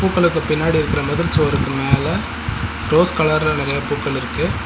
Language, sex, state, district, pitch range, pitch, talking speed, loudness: Tamil, male, Tamil Nadu, Nilgiris, 150-165 Hz, 155 Hz, 140 wpm, -18 LUFS